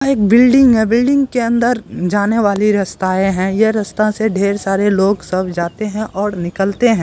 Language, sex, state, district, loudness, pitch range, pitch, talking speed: Hindi, male, Bihar, Kishanganj, -14 LUFS, 195-230 Hz, 205 Hz, 195 wpm